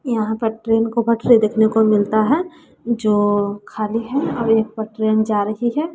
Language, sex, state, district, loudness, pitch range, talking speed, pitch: Hindi, female, Bihar, West Champaran, -18 LUFS, 215-235 Hz, 190 wpm, 225 Hz